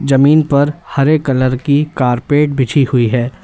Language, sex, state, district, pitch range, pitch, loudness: Hindi, male, Uttar Pradesh, Lalitpur, 130-145 Hz, 140 Hz, -13 LUFS